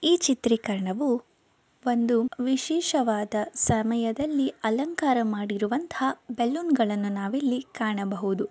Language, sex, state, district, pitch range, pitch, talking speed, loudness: Kannada, female, Karnataka, Mysore, 215-270 Hz, 240 Hz, 80 wpm, -26 LUFS